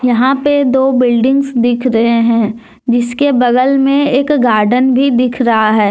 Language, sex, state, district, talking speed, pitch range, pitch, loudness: Hindi, female, Jharkhand, Deoghar, 160 wpm, 235-270 Hz, 250 Hz, -11 LUFS